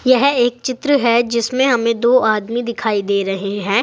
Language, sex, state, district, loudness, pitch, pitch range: Hindi, female, Uttar Pradesh, Saharanpur, -16 LUFS, 235 Hz, 215-255 Hz